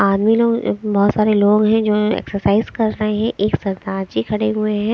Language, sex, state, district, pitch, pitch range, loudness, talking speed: Hindi, female, Chandigarh, Chandigarh, 210 Hz, 200-215 Hz, -17 LUFS, 205 wpm